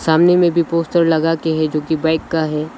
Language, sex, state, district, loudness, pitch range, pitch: Hindi, male, Arunachal Pradesh, Lower Dibang Valley, -16 LUFS, 160-170 Hz, 160 Hz